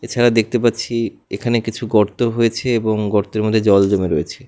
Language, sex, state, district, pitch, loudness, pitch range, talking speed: Bengali, male, West Bengal, Alipurduar, 115 Hz, -17 LUFS, 105-120 Hz, 175 wpm